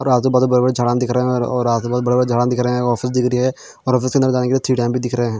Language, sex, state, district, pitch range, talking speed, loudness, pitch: Hindi, male, Bihar, Patna, 120-125 Hz, 310 wpm, -17 LUFS, 125 Hz